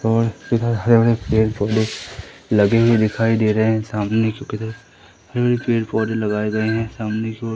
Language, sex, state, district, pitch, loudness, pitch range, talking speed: Hindi, male, Madhya Pradesh, Umaria, 110 Hz, -19 LUFS, 110-115 Hz, 135 wpm